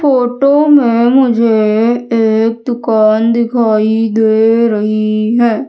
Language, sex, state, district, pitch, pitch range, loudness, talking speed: Hindi, female, Madhya Pradesh, Umaria, 230 Hz, 220-240 Hz, -11 LUFS, 95 wpm